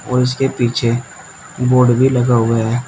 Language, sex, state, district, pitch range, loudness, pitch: Hindi, male, Uttar Pradesh, Shamli, 120-130 Hz, -15 LUFS, 125 Hz